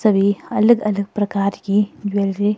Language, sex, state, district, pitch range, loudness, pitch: Hindi, female, Himachal Pradesh, Shimla, 200-210 Hz, -18 LUFS, 205 Hz